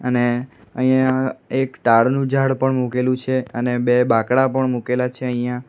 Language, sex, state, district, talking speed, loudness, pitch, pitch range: Gujarati, male, Gujarat, Valsad, 160 wpm, -19 LUFS, 125 Hz, 125-130 Hz